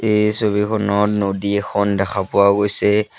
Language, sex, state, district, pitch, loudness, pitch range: Assamese, male, Assam, Sonitpur, 100 Hz, -17 LUFS, 100-105 Hz